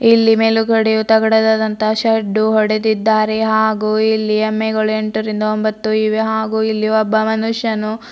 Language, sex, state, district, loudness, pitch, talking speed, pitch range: Kannada, female, Karnataka, Bidar, -15 LUFS, 220 Hz, 120 wpm, 215-220 Hz